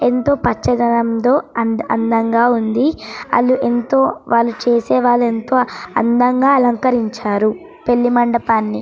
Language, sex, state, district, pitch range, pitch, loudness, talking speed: Telugu, female, Andhra Pradesh, Srikakulam, 230-250 Hz, 240 Hz, -15 LUFS, 80 wpm